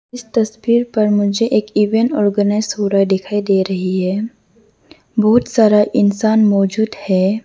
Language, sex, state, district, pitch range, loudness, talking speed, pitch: Hindi, female, Arunachal Pradesh, Lower Dibang Valley, 200-220 Hz, -15 LUFS, 145 wpm, 210 Hz